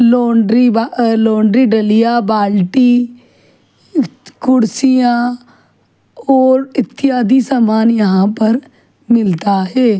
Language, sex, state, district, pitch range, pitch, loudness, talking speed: Hindi, female, Uttar Pradesh, Budaun, 220-255 Hz, 240 Hz, -12 LUFS, 80 wpm